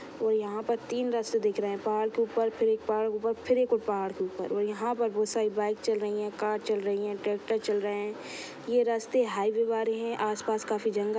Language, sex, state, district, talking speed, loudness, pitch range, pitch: Hindi, female, Chhattisgarh, Sukma, 260 wpm, -30 LUFS, 210-230 Hz, 220 Hz